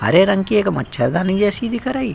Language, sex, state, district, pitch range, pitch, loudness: Hindi, male, Uttar Pradesh, Budaun, 170-225 Hz, 195 Hz, -18 LUFS